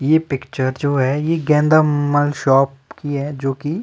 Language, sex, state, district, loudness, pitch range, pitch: Hindi, male, Himachal Pradesh, Shimla, -18 LUFS, 135-150 Hz, 145 Hz